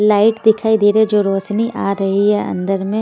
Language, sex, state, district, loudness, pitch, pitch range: Hindi, female, Haryana, Jhajjar, -15 LUFS, 210 Hz, 200-220 Hz